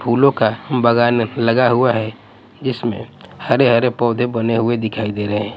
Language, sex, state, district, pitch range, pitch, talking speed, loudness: Hindi, male, Odisha, Nuapada, 110-120 Hz, 120 Hz, 170 wpm, -17 LUFS